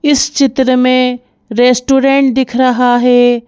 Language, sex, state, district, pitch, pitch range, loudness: Hindi, female, Madhya Pradesh, Bhopal, 255 Hz, 245-270 Hz, -11 LUFS